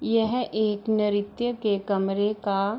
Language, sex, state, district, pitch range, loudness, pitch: Hindi, female, Bihar, East Champaran, 200-225 Hz, -25 LUFS, 210 Hz